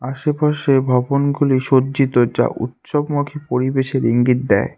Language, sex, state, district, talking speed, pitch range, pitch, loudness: Bengali, male, West Bengal, Alipurduar, 100 wpm, 125-145 Hz, 135 Hz, -17 LUFS